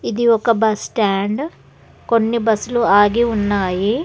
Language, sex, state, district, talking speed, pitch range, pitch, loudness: Telugu, female, Telangana, Hyderabad, 105 wpm, 205-235 Hz, 225 Hz, -17 LUFS